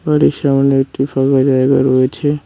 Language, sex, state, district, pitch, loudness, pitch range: Bengali, male, West Bengal, Cooch Behar, 135 Hz, -13 LUFS, 135-145 Hz